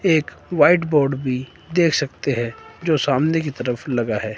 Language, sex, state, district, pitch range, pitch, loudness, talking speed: Hindi, female, Himachal Pradesh, Shimla, 125-160 Hz, 145 Hz, -20 LUFS, 180 wpm